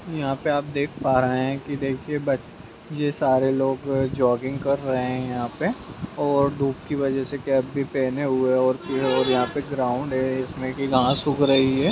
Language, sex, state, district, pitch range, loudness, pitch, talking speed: Hindi, male, Bihar, Jamui, 130-140 Hz, -23 LUFS, 135 Hz, 205 wpm